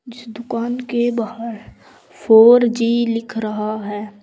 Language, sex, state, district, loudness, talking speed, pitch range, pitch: Hindi, female, Uttar Pradesh, Saharanpur, -17 LUFS, 125 wpm, 220-240 Hz, 230 Hz